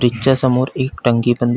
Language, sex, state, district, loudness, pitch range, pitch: Marathi, male, Maharashtra, Pune, -16 LUFS, 120-130 Hz, 125 Hz